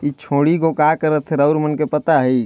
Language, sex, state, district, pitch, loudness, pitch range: Chhattisgarhi, male, Chhattisgarh, Jashpur, 150 Hz, -17 LUFS, 145-155 Hz